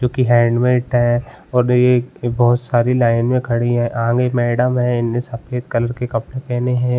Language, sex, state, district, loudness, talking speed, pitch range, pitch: Hindi, male, Uttarakhand, Uttarkashi, -17 LUFS, 155 wpm, 120-125 Hz, 120 Hz